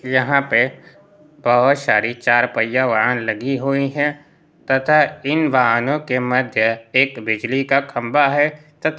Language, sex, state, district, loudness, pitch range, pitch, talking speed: Hindi, male, Bihar, Gopalganj, -17 LUFS, 120-150 Hz, 135 Hz, 140 wpm